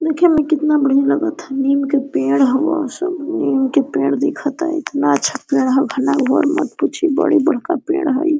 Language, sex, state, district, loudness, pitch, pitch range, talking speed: Hindi, female, Jharkhand, Sahebganj, -17 LUFS, 300 Hz, 275-325 Hz, 200 wpm